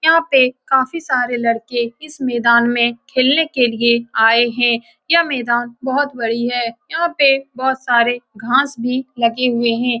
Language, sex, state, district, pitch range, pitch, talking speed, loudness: Hindi, female, Bihar, Saran, 235-270 Hz, 245 Hz, 160 wpm, -16 LUFS